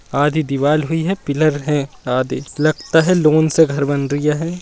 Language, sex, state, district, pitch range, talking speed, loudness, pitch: Hindi, male, Bihar, Jahanabad, 145-160 Hz, 180 wpm, -17 LUFS, 150 Hz